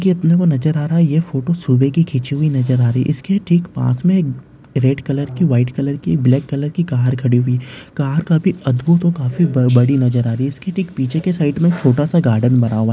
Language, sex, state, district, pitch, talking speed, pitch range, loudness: Hindi, male, Maharashtra, Chandrapur, 140 Hz, 250 wpm, 130-170 Hz, -16 LUFS